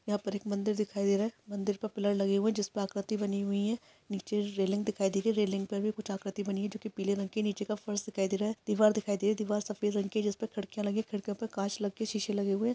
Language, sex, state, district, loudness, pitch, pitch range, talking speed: Hindi, female, Bihar, Kishanganj, -33 LUFS, 205 Hz, 200-215 Hz, 330 wpm